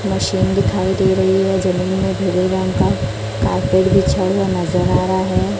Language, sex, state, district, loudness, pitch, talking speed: Hindi, female, Chhattisgarh, Raipur, -17 LUFS, 185 Hz, 180 wpm